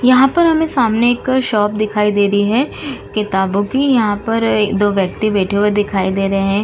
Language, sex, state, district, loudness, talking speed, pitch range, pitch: Hindi, female, Uttar Pradesh, Jalaun, -15 LUFS, 200 wpm, 200-245 Hz, 210 Hz